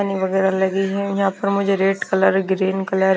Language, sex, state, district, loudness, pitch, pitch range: Hindi, female, Himachal Pradesh, Shimla, -19 LUFS, 195 Hz, 190-195 Hz